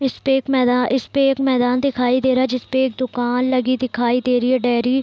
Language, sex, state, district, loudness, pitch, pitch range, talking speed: Hindi, female, Bihar, Sitamarhi, -18 LUFS, 255 Hz, 245-260 Hz, 240 wpm